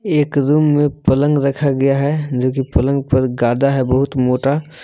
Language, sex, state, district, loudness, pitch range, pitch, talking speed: Hindi, male, Jharkhand, Palamu, -16 LUFS, 130-145 Hz, 140 Hz, 185 wpm